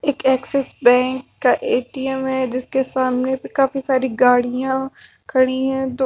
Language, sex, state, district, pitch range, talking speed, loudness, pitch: Hindi, female, Bihar, Vaishali, 255-265 Hz, 140 wpm, -19 LUFS, 260 Hz